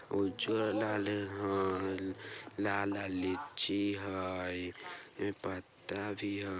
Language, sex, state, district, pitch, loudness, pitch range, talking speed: Bajjika, male, Bihar, Vaishali, 100 Hz, -36 LUFS, 95-100 Hz, 75 wpm